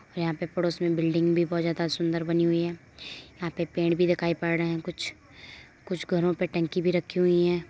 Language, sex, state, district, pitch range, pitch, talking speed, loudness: Hindi, female, Uttar Pradesh, Muzaffarnagar, 170-175 Hz, 170 Hz, 225 wpm, -27 LUFS